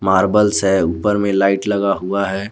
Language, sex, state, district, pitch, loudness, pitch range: Hindi, male, Jharkhand, Garhwa, 100 Hz, -16 LUFS, 95-100 Hz